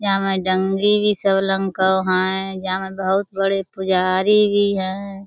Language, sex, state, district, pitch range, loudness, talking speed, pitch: Hindi, female, Uttar Pradesh, Budaun, 190-195 Hz, -19 LUFS, 150 wpm, 195 Hz